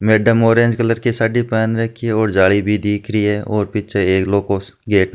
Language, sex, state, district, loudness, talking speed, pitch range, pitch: Marwari, male, Rajasthan, Nagaur, -16 LUFS, 245 wpm, 100-115 Hz, 110 Hz